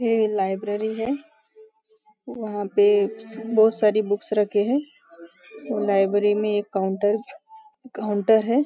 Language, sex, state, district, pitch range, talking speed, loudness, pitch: Hindi, female, Maharashtra, Nagpur, 205-260 Hz, 110 wpm, -22 LUFS, 215 Hz